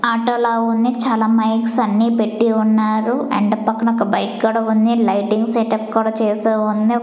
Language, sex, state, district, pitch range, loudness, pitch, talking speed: Telugu, female, Andhra Pradesh, Sri Satya Sai, 220-230 Hz, -17 LUFS, 225 Hz, 170 wpm